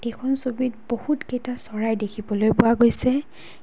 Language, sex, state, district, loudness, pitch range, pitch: Assamese, female, Assam, Kamrup Metropolitan, -23 LUFS, 225-255 Hz, 235 Hz